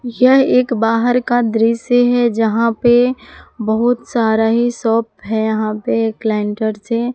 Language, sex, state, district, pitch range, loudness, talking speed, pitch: Hindi, female, Jharkhand, Palamu, 220-245 Hz, -15 LUFS, 150 wpm, 230 Hz